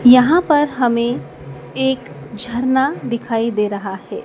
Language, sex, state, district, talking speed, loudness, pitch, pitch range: Hindi, female, Madhya Pradesh, Dhar, 125 wpm, -17 LUFS, 245 Hz, 230-265 Hz